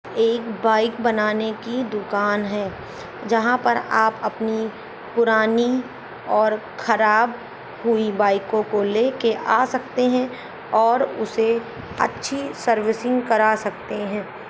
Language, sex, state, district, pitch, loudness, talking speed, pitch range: Hindi, female, Uttar Pradesh, Ghazipur, 225 Hz, -21 LUFS, 110 wpm, 215-235 Hz